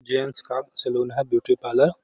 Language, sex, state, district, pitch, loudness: Hindi, male, Bihar, Gaya, 135 Hz, -24 LUFS